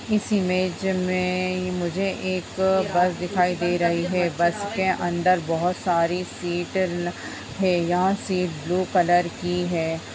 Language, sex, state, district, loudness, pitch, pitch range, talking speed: Hindi, female, Bihar, Jahanabad, -23 LUFS, 180 Hz, 175-185 Hz, 135 wpm